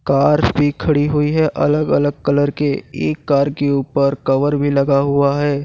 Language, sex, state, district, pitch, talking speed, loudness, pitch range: Hindi, male, Gujarat, Valsad, 145 Hz, 190 wpm, -16 LUFS, 140-145 Hz